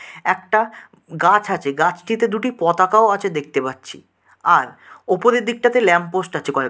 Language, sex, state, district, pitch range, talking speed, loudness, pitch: Bengali, male, West Bengal, Dakshin Dinajpur, 170-220 Hz, 145 wpm, -18 LUFS, 185 Hz